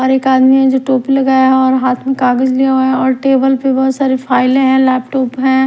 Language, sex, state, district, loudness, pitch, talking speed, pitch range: Hindi, female, Bihar, Katihar, -12 LUFS, 265 Hz, 230 wpm, 260-265 Hz